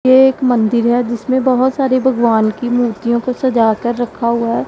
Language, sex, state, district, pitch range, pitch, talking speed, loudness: Hindi, female, Punjab, Pathankot, 235-255 Hz, 245 Hz, 205 wpm, -14 LUFS